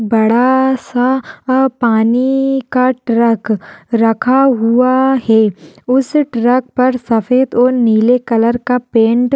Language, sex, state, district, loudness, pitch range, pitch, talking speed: Hindi, female, Uttar Pradesh, Deoria, -13 LUFS, 230-260 Hz, 250 Hz, 115 wpm